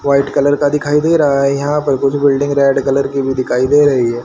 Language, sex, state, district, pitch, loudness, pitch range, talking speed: Hindi, male, Haryana, Rohtak, 140 Hz, -13 LUFS, 135-145 Hz, 270 wpm